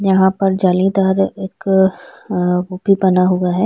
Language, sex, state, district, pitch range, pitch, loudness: Hindi, female, Uttar Pradesh, Jyotiba Phule Nagar, 185-195 Hz, 190 Hz, -15 LUFS